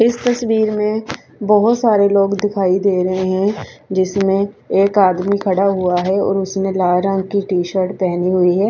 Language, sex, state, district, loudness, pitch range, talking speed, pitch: Hindi, female, Haryana, Charkhi Dadri, -16 LUFS, 185-205 Hz, 170 wpm, 195 Hz